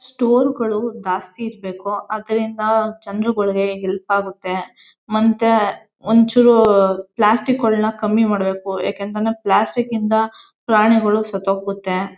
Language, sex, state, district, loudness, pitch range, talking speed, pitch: Kannada, female, Karnataka, Mysore, -18 LUFS, 195-225 Hz, 100 wpm, 215 Hz